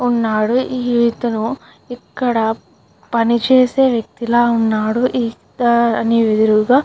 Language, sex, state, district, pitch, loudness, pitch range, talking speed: Telugu, female, Andhra Pradesh, Guntur, 235 Hz, -16 LUFS, 225-245 Hz, 95 wpm